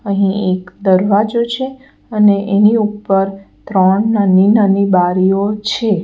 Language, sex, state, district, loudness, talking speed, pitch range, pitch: Gujarati, female, Gujarat, Valsad, -13 LUFS, 110 wpm, 195-215 Hz, 200 Hz